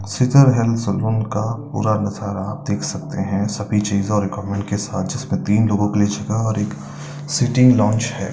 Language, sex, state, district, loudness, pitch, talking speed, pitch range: Hindi, male, Bihar, Gaya, -19 LUFS, 105 Hz, 180 wpm, 100-115 Hz